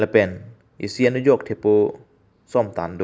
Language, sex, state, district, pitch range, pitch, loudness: Karbi, male, Assam, Karbi Anglong, 95-115 Hz, 105 Hz, -20 LUFS